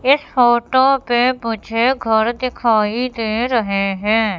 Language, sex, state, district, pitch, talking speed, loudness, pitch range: Hindi, female, Madhya Pradesh, Katni, 235 Hz, 125 wpm, -17 LUFS, 220-255 Hz